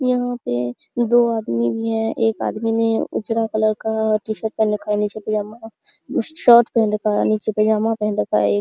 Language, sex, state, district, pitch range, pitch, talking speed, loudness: Hindi, female, Bihar, Araria, 210-225 Hz, 220 Hz, 190 wpm, -19 LUFS